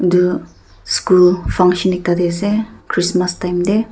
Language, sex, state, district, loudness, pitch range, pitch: Nagamese, female, Nagaland, Dimapur, -16 LUFS, 175-185 Hz, 180 Hz